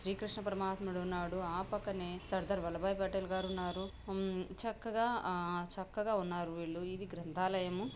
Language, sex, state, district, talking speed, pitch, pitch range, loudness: Telugu, female, Andhra Pradesh, Anantapur, 135 wpm, 190 Hz, 180-200 Hz, -39 LUFS